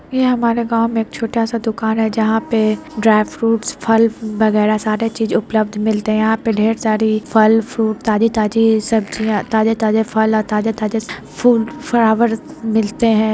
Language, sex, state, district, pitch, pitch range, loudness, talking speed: Hindi, female, Bihar, Lakhisarai, 220 Hz, 215-225 Hz, -16 LUFS, 160 wpm